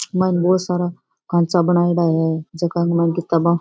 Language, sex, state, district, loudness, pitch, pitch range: Rajasthani, female, Rajasthan, Churu, -18 LUFS, 170 Hz, 170-175 Hz